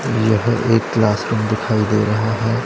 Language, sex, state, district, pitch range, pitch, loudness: Hindi, male, Punjab, Pathankot, 110-115 Hz, 110 Hz, -17 LUFS